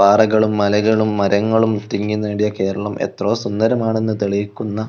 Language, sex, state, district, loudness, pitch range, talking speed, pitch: Malayalam, male, Kerala, Kozhikode, -18 LUFS, 100-110 Hz, 110 wpm, 105 Hz